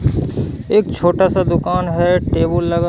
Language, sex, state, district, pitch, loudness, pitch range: Hindi, male, Bihar, Katihar, 175 Hz, -16 LUFS, 170-180 Hz